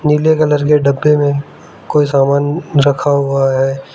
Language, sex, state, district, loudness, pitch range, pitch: Hindi, male, Arunachal Pradesh, Lower Dibang Valley, -13 LUFS, 140-150 Hz, 145 Hz